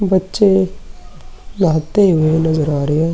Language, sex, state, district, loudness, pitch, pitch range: Hindi, male, Uttar Pradesh, Muzaffarnagar, -15 LUFS, 170 Hz, 155-190 Hz